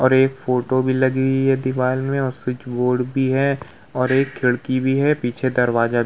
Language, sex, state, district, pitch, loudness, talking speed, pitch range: Hindi, male, Uttar Pradesh, Muzaffarnagar, 130 Hz, -20 LUFS, 220 wpm, 125-135 Hz